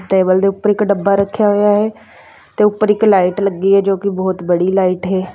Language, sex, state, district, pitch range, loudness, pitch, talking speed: Punjabi, female, Punjab, Fazilka, 185-210 Hz, -14 LUFS, 195 Hz, 215 wpm